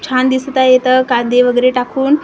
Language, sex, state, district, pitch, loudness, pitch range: Marathi, female, Maharashtra, Gondia, 255 Hz, -12 LUFS, 250-260 Hz